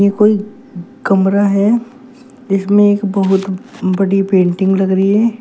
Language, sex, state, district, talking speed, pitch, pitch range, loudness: Hindi, female, Uttar Pradesh, Shamli, 120 wpm, 200 Hz, 190-220 Hz, -13 LUFS